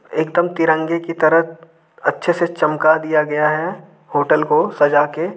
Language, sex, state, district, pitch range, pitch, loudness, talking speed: Hindi, male, Jharkhand, Deoghar, 155-170 Hz, 165 Hz, -17 LUFS, 155 wpm